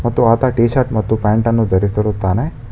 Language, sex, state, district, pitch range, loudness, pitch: Kannada, male, Karnataka, Bangalore, 105-120 Hz, -15 LUFS, 115 Hz